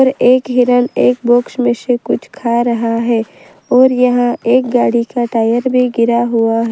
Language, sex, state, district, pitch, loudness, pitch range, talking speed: Hindi, female, Gujarat, Valsad, 240 Hz, -13 LUFS, 235-250 Hz, 180 wpm